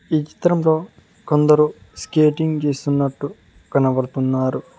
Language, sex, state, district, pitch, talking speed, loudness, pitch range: Telugu, male, Telangana, Mahabubabad, 150 Hz, 75 wpm, -19 LUFS, 130-155 Hz